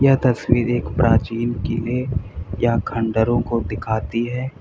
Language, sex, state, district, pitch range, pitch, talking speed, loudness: Hindi, male, Uttar Pradesh, Lalitpur, 110-120 Hz, 115 Hz, 130 wpm, -20 LUFS